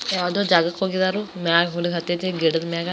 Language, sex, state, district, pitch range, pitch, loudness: Kannada, female, Karnataka, Belgaum, 170-185 Hz, 175 Hz, -21 LUFS